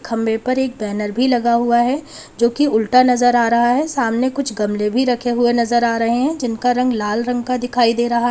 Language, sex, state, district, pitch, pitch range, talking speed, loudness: Hindi, female, Uttar Pradesh, Lalitpur, 240 Hz, 230-250 Hz, 245 wpm, -17 LUFS